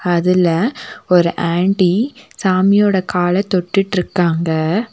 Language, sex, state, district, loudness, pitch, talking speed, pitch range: Tamil, female, Tamil Nadu, Nilgiris, -15 LUFS, 185 Hz, 75 wpm, 175-200 Hz